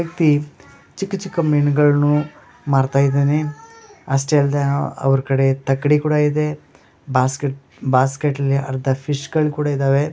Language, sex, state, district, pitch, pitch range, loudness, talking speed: Kannada, male, Karnataka, Bellary, 145 Hz, 135-150 Hz, -18 LUFS, 140 wpm